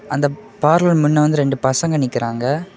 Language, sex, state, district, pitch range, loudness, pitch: Tamil, male, Tamil Nadu, Kanyakumari, 135-165 Hz, -17 LUFS, 145 Hz